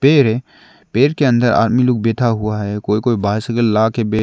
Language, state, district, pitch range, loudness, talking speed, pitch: Hindi, Arunachal Pradesh, Lower Dibang Valley, 110-125 Hz, -16 LUFS, 200 wpm, 115 Hz